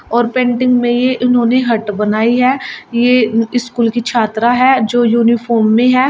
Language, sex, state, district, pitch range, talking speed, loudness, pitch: Hindi, female, Uttar Pradesh, Shamli, 230-250 Hz, 165 wpm, -13 LUFS, 240 Hz